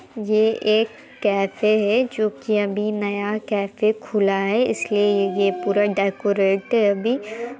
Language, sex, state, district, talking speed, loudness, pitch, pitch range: Hindi, female, Bihar, Muzaffarpur, 135 wpm, -21 LUFS, 210 Hz, 200-220 Hz